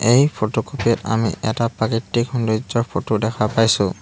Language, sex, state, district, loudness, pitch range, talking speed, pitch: Assamese, male, Assam, Hailakandi, -20 LUFS, 110-120 Hz, 150 wpm, 115 Hz